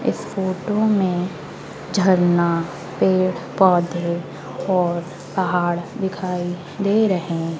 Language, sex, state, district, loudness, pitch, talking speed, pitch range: Hindi, female, Madhya Pradesh, Dhar, -20 LUFS, 180 Hz, 95 wpm, 175-190 Hz